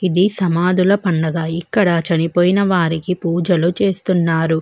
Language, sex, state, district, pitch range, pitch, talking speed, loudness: Telugu, female, Andhra Pradesh, Visakhapatnam, 165-185 Hz, 175 Hz, 105 wpm, -16 LUFS